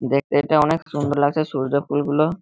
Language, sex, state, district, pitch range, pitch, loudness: Bengali, male, West Bengal, Malda, 140-155 Hz, 145 Hz, -20 LUFS